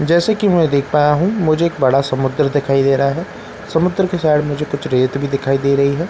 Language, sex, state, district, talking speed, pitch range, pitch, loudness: Hindi, male, Bihar, Katihar, 245 wpm, 140-170 Hz, 150 Hz, -16 LUFS